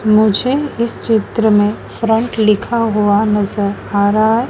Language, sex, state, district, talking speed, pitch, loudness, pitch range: Hindi, female, Madhya Pradesh, Dhar, 145 wpm, 215 Hz, -14 LUFS, 205-230 Hz